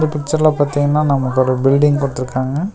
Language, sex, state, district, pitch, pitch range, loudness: Tamil, male, Tamil Nadu, Nilgiris, 145 Hz, 130-150 Hz, -15 LUFS